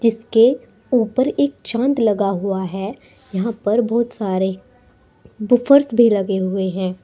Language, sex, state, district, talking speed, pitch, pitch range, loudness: Hindi, female, Uttar Pradesh, Saharanpur, 135 wpm, 225 Hz, 195-240 Hz, -18 LUFS